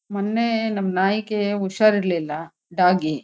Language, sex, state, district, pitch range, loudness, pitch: Kannada, female, Karnataka, Shimoga, 175-210 Hz, -21 LUFS, 195 Hz